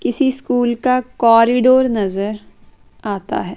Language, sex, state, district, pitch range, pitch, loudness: Hindi, female, Chandigarh, Chandigarh, 210-255 Hz, 240 Hz, -16 LUFS